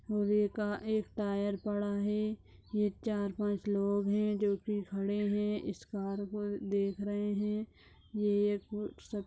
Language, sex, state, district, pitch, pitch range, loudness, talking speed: Hindi, female, Uttar Pradesh, Etah, 205 Hz, 200-210 Hz, -34 LUFS, 150 wpm